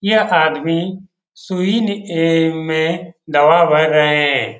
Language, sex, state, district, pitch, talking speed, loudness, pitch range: Hindi, male, Bihar, Jamui, 165 Hz, 115 wpm, -15 LUFS, 155-185 Hz